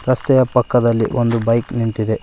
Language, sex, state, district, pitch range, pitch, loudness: Kannada, male, Karnataka, Koppal, 115-125 Hz, 120 Hz, -16 LUFS